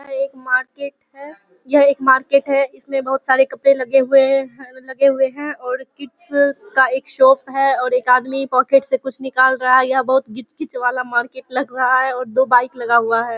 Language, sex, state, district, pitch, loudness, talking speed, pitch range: Hindi, female, Bihar, Bhagalpur, 265 Hz, -16 LUFS, 210 wpm, 255-275 Hz